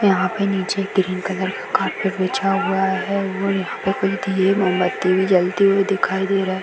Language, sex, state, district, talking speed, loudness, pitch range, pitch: Hindi, female, Bihar, Sitamarhi, 210 wpm, -20 LUFS, 190-195 Hz, 195 Hz